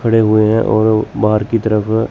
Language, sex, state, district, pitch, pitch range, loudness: Hindi, male, Chandigarh, Chandigarh, 110 Hz, 105-115 Hz, -14 LUFS